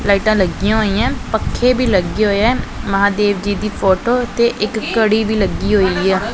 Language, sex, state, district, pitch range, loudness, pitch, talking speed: Punjabi, male, Punjab, Pathankot, 200-220 Hz, -16 LUFS, 210 Hz, 160 wpm